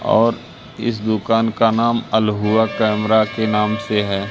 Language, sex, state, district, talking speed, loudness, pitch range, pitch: Hindi, male, Madhya Pradesh, Katni, 155 wpm, -18 LUFS, 105-115 Hz, 110 Hz